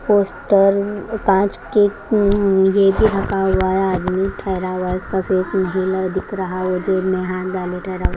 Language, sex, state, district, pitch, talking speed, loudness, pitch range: Hindi, female, Haryana, Jhajjar, 190 Hz, 200 wpm, -18 LUFS, 185-200 Hz